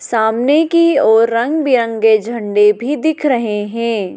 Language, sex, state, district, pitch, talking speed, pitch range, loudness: Hindi, female, Madhya Pradesh, Dhar, 230 Hz, 145 wpm, 220-285 Hz, -14 LUFS